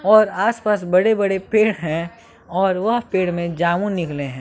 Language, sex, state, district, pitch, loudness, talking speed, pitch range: Hindi, male, Bihar, West Champaran, 190 Hz, -19 LUFS, 190 wpm, 170-215 Hz